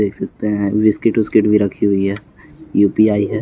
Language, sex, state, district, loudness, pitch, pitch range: Hindi, male, Bihar, West Champaran, -16 LUFS, 105 Hz, 100-110 Hz